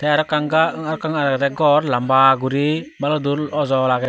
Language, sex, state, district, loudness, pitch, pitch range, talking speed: Chakma, male, Tripura, Unakoti, -18 LUFS, 145 Hz, 135-150 Hz, 115 wpm